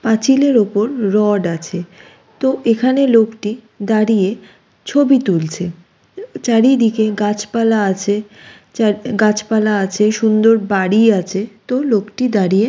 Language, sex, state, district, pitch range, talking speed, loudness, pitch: Bengali, female, West Bengal, Jalpaiguri, 205-230 Hz, 115 wpm, -15 LUFS, 215 Hz